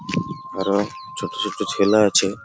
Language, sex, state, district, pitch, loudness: Bengali, male, West Bengal, Malda, 105 Hz, -21 LUFS